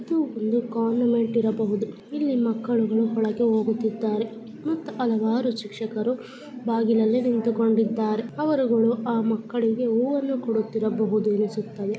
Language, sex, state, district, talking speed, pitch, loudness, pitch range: Kannada, female, Karnataka, Gulbarga, 100 wpm, 225 Hz, -24 LUFS, 220-240 Hz